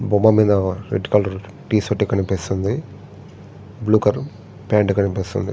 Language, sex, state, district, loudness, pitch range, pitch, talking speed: Telugu, male, Andhra Pradesh, Srikakulam, -19 LUFS, 100-110 Hz, 105 Hz, 120 wpm